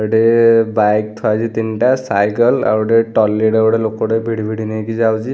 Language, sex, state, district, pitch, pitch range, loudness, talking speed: Odia, male, Odisha, Khordha, 110 Hz, 110-115 Hz, -15 LUFS, 180 wpm